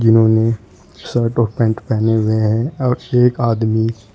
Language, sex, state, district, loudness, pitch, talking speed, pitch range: Hindi, male, Uttar Pradesh, Shamli, -16 LUFS, 115 Hz, 145 wpm, 110-120 Hz